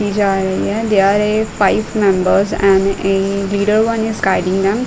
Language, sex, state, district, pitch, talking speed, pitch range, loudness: Hindi, female, Uttar Pradesh, Muzaffarnagar, 200 Hz, 195 wpm, 195-215 Hz, -15 LUFS